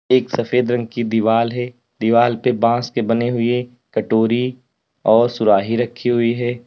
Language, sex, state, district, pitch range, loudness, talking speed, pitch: Hindi, male, Uttar Pradesh, Lalitpur, 115-120 Hz, -18 LUFS, 160 wpm, 120 Hz